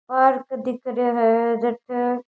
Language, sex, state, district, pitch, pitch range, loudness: Rajasthani, female, Rajasthan, Nagaur, 245 Hz, 240-255 Hz, -21 LUFS